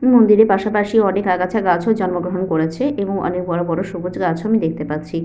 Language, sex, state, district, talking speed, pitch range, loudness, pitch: Bengali, female, West Bengal, Paschim Medinipur, 215 wpm, 175-210 Hz, -18 LUFS, 185 Hz